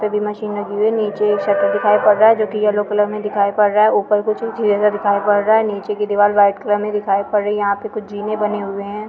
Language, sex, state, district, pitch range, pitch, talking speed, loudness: Hindi, female, Goa, North and South Goa, 205-210 Hz, 210 Hz, 290 wpm, -17 LUFS